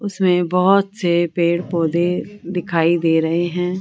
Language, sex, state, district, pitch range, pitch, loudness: Hindi, female, Rajasthan, Jaipur, 170-180 Hz, 175 Hz, -18 LUFS